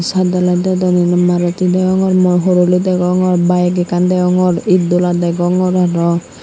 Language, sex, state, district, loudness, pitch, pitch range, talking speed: Chakma, female, Tripura, Unakoti, -13 LUFS, 180 Hz, 175-185 Hz, 140 wpm